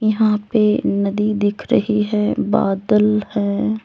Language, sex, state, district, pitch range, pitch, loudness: Hindi, female, Jharkhand, Deoghar, 205-215 Hz, 210 Hz, -18 LUFS